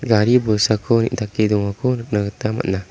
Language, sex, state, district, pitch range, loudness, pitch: Garo, male, Meghalaya, South Garo Hills, 105-115 Hz, -19 LUFS, 110 Hz